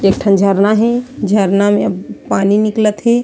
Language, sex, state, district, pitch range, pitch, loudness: Chhattisgarhi, female, Chhattisgarh, Sarguja, 200-220 Hz, 205 Hz, -13 LUFS